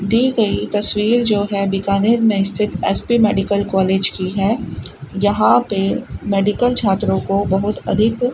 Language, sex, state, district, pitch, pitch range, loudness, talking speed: Hindi, female, Rajasthan, Bikaner, 205 Hz, 195-220 Hz, -17 LUFS, 145 wpm